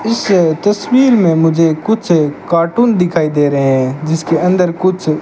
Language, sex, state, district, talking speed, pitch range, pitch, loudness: Hindi, male, Rajasthan, Bikaner, 150 wpm, 155-195 Hz, 170 Hz, -12 LUFS